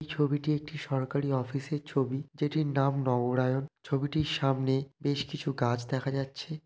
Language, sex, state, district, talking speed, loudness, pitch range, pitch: Bengali, male, West Bengal, North 24 Parganas, 135 wpm, -31 LUFS, 135-150 Hz, 140 Hz